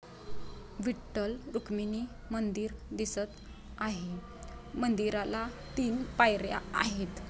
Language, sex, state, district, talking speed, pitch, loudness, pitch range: Marathi, female, Maharashtra, Dhule, 75 wpm, 215 Hz, -34 LUFS, 205-235 Hz